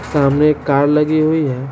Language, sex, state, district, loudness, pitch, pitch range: Hindi, male, Bihar, Sitamarhi, -14 LUFS, 150 Hz, 140-150 Hz